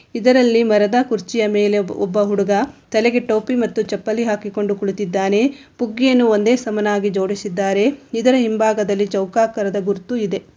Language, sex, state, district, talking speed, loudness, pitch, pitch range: Kannada, female, Karnataka, Shimoga, 120 wpm, -18 LUFS, 215 Hz, 205-235 Hz